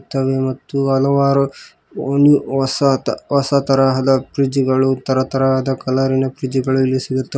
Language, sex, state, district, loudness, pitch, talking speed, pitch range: Kannada, male, Karnataka, Koppal, -16 LUFS, 135 Hz, 120 wpm, 130-140 Hz